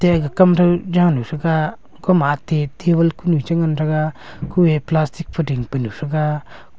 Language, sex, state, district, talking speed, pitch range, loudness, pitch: Wancho, male, Arunachal Pradesh, Longding, 175 wpm, 150-170 Hz, -18 LUFS, 155 Hz